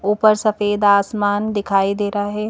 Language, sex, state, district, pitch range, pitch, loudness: Hindi, female, Madhya Pradesh, Bhopal, 205-210 Hz, 205 Hz, -17 LUFS